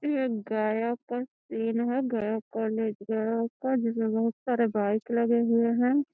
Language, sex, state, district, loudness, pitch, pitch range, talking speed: Magahi, female, Bihar, Gaya, -28 LUFS, 230 Hz, 220-245 Hz, 165 wpm